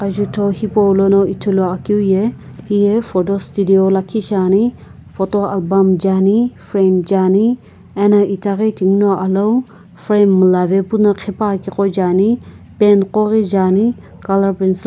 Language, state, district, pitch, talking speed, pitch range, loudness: Sumi, Nagaland, Kohima, 195 Hz, 135 wpm, 190-210 Hz, -14 LUFS